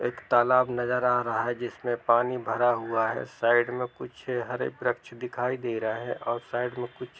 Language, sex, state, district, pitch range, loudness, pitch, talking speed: Hindi, male, Bihar, Sitamarhi, 120-125 Hz, -27 LUFS, 120 Hz, 200 wpm